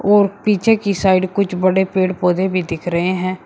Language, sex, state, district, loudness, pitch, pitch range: Hindi, male, Uttar Pradesh, Shamli, -17 LUFS, 185 Hz, 185-200 Hz